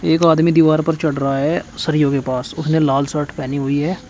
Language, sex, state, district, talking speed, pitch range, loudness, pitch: Hindi, male, Uttar Pradesh, Shamli, 235 wpm, 140-160 Hz, -17 LUFS, 155 Hz